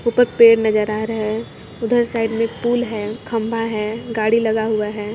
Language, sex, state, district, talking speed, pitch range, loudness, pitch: Hindi, female, Jharkhand, Jamtara, 195 wpm, 215-230 Hz, -18 LUFS, 225 Hz